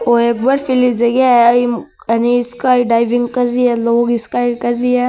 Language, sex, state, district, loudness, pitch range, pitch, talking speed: Marwari, male, Rajasthan, Nagaur, -14 LUFS, 235-250 Hz, 240 Hz, 200 wpm